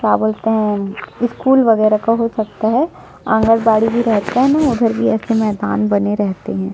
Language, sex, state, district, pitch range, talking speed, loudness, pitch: Hindi, female, Chhattisgarh, Sukma, 210-230 Hz, 185 wpm, -15 LUFS, 220 Hz